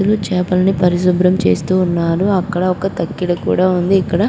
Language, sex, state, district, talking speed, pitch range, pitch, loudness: Telugu, female, Andhra Pradesh, Krishna, 165 wpm, 175-190 Hz, 180 Hz, -15 LUFS